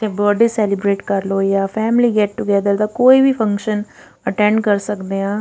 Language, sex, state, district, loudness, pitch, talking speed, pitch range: Punjabi, female, Punjab, Fazilka, -16 LUFS, 210 Hz, 175 wpm, 200-220 Hz